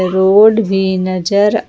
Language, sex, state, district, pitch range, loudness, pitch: Hindi, female, Jharkhand, Ranchi, 185-210 Hz, -12 LUFS, 195 Hz